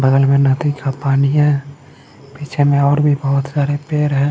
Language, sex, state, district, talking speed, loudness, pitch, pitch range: Hindi, male, Punjab, Fazilka, 195 wpm, -15 LUFS, 140 Hz, 140-145 Hz